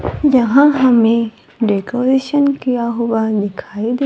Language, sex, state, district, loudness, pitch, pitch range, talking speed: Hindi, female, Maharashtra, Gondia, -15 LUFS, 240 Hz, 225-265 Hz, 105 wpm